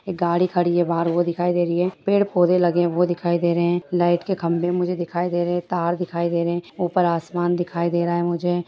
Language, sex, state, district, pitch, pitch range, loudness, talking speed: Hindi, female, Bihar, Purnia, 175 Hz, 170-175 Hz, -21 LUFS, 255 wpm